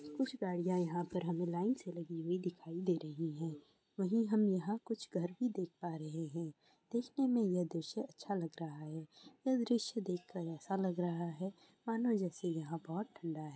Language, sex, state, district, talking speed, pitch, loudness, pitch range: Hindi, female, Bihar, Kishanganj, 195 wpm, 180 Hz, -39 LUFS, 165-210 Hz